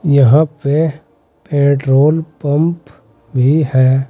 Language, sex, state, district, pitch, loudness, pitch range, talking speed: Hindi, male, Uttar Pradesh, Saharanpur, 145 Hz, -13 LUFS, 135-155 Hz, 90 wpm